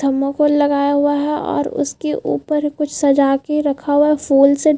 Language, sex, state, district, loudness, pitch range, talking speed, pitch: Hindi, female, Chhattisgarh, Bilaspur, -16 LUFS, 280-300 Hz, 200 wpm, 290 Hz